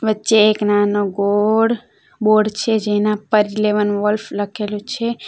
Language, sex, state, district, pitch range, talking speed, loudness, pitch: Gujarati, female, Gujarat, Valsad, 205-220 Hz, 135 wpm, -17 LUFS, 210 Hz